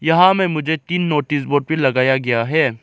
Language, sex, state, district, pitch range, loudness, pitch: Hindi, male, Arunachal Pradesh, Lower Dibang Valley, 135-160 Hz, -17 LUFS, 150 Hz